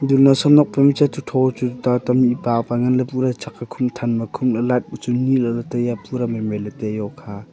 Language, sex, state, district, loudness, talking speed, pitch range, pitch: Wancho, male, Arunachal Pradesh, Longding, -19 LUFS, 295 wpm, 115-130 Hz, 125 Hz